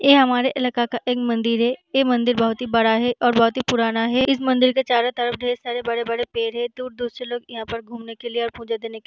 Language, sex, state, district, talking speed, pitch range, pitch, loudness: Hindi, female, Bihar, Vaishali, 250 wpm, 230-250 Hz, 240 Hz, -21 LUFS